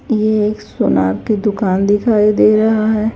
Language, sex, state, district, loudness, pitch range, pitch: Hindi, female, Chhattisgarh, Raipur, -14 LUFS, 205-220 Hz, 215 Hz